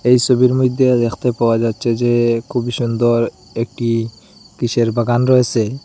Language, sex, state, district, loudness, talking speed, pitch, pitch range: Bengali, male, Assam, Hailakandi, -16 LUFS, 135 wpm, 120 Hz, 115-125 Hz